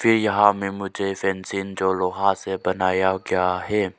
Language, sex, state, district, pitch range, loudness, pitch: Hindi, male, Arunachal Pradesh, Lower Dibang Valley, 95-100 Hz, -22 LUFS, 95 Hz